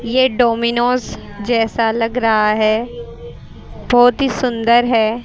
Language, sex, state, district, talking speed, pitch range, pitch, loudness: Hindi, female, Haryana, Rohtak, 115 wpm, 225-245 Hz, 235 Hz, -15 LUFS